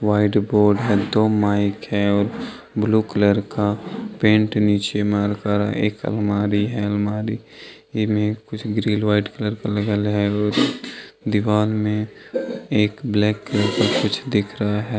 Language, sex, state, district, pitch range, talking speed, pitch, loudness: Hindi, male, Jharkhand, Deoghar, 105-110 Hz, 110 wpm, 105 Hz, -20 LUFS